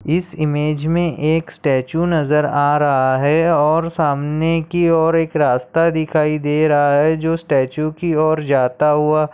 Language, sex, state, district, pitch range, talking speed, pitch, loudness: Hindi, male, Maharashtra, Aurangabad, 145-165 Hz, 160 wpm, 155 Hz, -16 LUFS